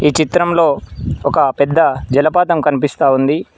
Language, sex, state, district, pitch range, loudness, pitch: Telugu, male, Telangana, Mahabubabad, 140-165 Hz, -14 LUFS, 150 Hz